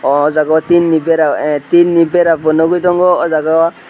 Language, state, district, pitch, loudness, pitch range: Kokborok, Tripura, West Tripura, 165 Hz, -11 LUFS, 155-175 Hz